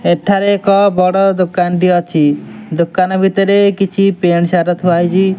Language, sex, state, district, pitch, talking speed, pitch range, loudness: Odia, male, Odisha, Nuapada, 185 Hz, 145 wpm, 175-195 Hz, -12 LUFS